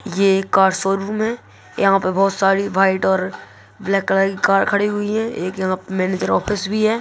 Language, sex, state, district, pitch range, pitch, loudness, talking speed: Hindi, female, Bihar, Purnia, 190-205 Hz, 195 Hz, -18 LUFS, 205 wpm